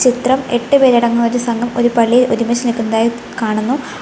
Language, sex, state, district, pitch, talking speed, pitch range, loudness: Malayalam, female, Kerala, Kollam, 240 Hz, 150 wpm, 235-250 Hz, -14 LUFS